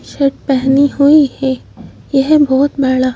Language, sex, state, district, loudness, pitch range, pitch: Hindi, female, Madhya Pradesh, Bhopal, -12 LUFS, 265-285 Hz, 275 Hz